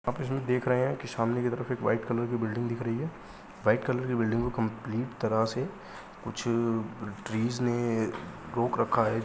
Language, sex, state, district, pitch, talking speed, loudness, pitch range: Hindi, male, Uttar Pradesh, Muzaffarnagar, 120 Hz, 200 wpm, -30 LUFS, 115-125 Hz